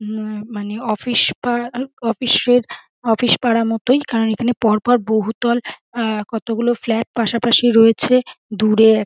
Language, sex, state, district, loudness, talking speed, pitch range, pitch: Bengali, female, West Bengal, Dakshin Dinajpur, -17 LUFS, 140 wpm, 220-245 Hz, 230 Hz